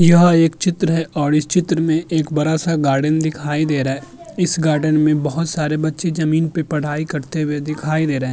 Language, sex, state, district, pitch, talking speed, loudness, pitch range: Hindi, male, Uttar Pradesh, Jyotiba Phule Nagar, 155 Hz, 215 wpm, -18 LUFS, 150-165 Hz